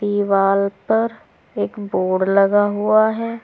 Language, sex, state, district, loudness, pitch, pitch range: Hindi, female, Uttar Pradesh, Saharanpur, -18 LUFS, 205 Hz, 195-220 Hz